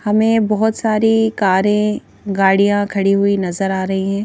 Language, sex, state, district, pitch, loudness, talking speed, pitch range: Hindi, female, Madhya Pradesh, Bhopal, 205 Hz, -16 LUFS, 155 wpm, 195-215 Hz